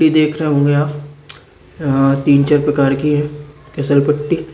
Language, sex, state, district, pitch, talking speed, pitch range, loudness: Hindi, male, Bihar, Araria, 145 Hz, 170 wpm, 140-150 Hz, -15 LUFS